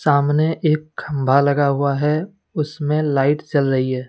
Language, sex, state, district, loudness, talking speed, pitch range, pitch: Hindi, male, Jharkhand, Deoghar, -19 LUFS, 160 wpm, 140-155 Hz, 145 Hz